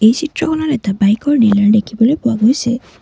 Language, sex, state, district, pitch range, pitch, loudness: Assamese, female, Assam, Sonitpur, 215-285 Hz, 235 Hz, -14 LUFS